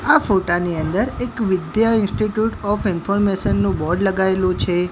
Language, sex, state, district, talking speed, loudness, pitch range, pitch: Gujarati, male, Gujarat, Gandhinagar, 160 wpm, -19 LUFS, 175-215 Hz, 195 Hz